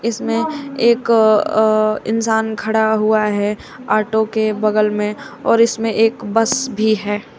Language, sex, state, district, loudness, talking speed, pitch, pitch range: Hindi, female, Uttar Pradesh, Shamli, -16 LUFS, 145 wpm, 220 Hz, 215-230 Hz